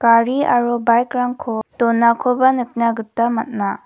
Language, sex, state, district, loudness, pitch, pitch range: Garo, female, Meghalaya, West Garo Hills, -17 LUFS, 235 Hz, 230-250 Hz